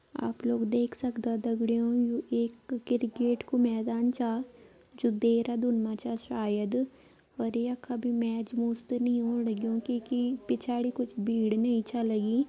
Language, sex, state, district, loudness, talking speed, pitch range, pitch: Garhwali, female, Uttarakhand, Uttarkashi, -30 LUFS, 155 wpm, 230-245 Hz, 235 Hz